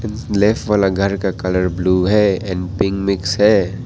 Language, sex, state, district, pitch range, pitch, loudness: Hindi, male, Arunachal Pradesh, Papum Pare, 95-105 Hz, 100 Hz, -16 LUFS